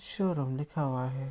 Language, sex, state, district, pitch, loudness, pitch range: Hindi, male, Bihar, Araria, 140 Hz, -32 LUFS, 135-155 Hz